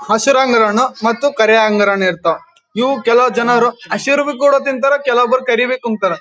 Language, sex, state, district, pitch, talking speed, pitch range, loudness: Kannada, male, Karnataka, Gulbarga, 245 Hz, 175 wpm, 220-270 Hz, -13 LUFS